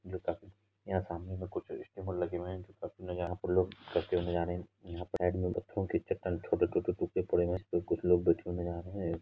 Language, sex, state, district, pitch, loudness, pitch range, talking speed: Hindi, male, Bihar, Purnia, 90 Hz, -35 LUFS, 85-95 Hz, 200 wpm